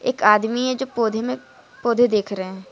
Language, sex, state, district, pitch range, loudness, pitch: Hindi, female, Jharkhand, Deoghar, 210-250 Hz, -20 LUFS, 230 Hz